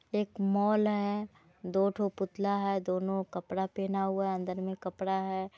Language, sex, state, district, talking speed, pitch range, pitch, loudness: Hindi, female, Bihar, Muzaffarpur, 160 wpm, 190-200 Hz, 195 Hz, -32 LUFS